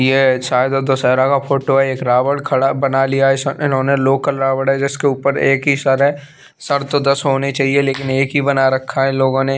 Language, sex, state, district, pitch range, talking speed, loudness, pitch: Hindi, male, Chandigarh, Chandigarh, 135-140 Hz, 220 wpm, -15 LUFS, 135 Hz